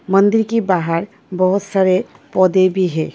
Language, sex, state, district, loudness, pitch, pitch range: Hindi, female, Delhi, New Delhi, -16 LUFS, 185 Hz, 185-200 Hz